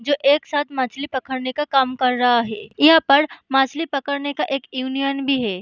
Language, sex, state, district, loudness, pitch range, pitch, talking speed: Hindi, female, Bihar, Araria, -19 LUFS, 260-285 Hz, 275 Hz, 205 wpm